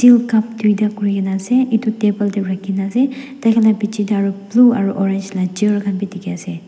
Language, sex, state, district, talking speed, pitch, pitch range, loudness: Nagamese, female, Nagaland, Dimapur, 215 wpm, 205 Hz, 195-225 Hz, -17 LUFS